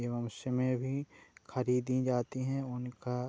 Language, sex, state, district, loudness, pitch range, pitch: Hindi, male, Uttar Pradesh, Hamirpur, -35 LUFS, 125-130 Hz, 125 Hz